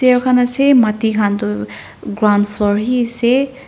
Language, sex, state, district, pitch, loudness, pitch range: Nagamese, female, Nagaland, Dimapur, 220 Hz, -15 LUFS, 205-250 Hz